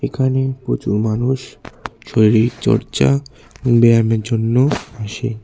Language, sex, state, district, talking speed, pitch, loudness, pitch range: Bengali, male, Tripura, West Tripura, 75 wpm, 115 Hz, -17 LUFS, 110-130 Hz